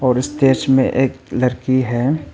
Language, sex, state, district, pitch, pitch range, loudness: Hindi, male, Arunachal Pradesh, Papum Pare, 130 Hz, 125-135 Hz, -17 LUFS